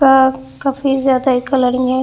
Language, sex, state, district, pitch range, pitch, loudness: Hindi, female, Assam, Hailakandi, 255-270 Hz, 265 Hz, -15 LUFS